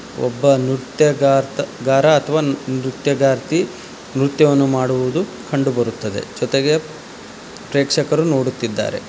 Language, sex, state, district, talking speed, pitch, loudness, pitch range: Kannada, male, Karnataka, Dharwad, 65 wpm, 135 Hz, -18 LUFS, 130-145 Hz